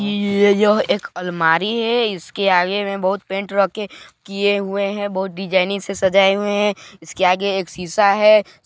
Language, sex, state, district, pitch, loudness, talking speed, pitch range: Hindi, male, Chhattisgarh, Balrampur, 195 Hz, -18 LUFS, 180 wpm, 190-205 Hz